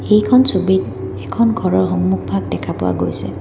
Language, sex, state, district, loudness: Assamese, female, Assam, Kamrup Metropolitan, -16 LUFS